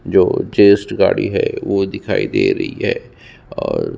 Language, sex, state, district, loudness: Hindi, male, Chhattisgarh, Sukma, -16 LUFS